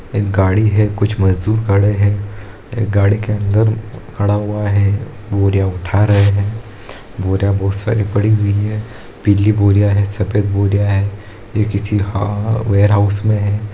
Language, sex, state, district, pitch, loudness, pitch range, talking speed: Hindi, male, Bihar, East Champaran, 100 Hz, -15 LUFS, 100-105 Hz, 155 wpm